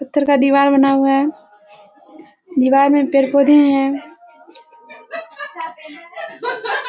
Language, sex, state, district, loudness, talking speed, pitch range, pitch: Hindi, female, Bihar, Kishanganj, -14 LUFS, 85 wpm, 275-325 Hz, 285 Hz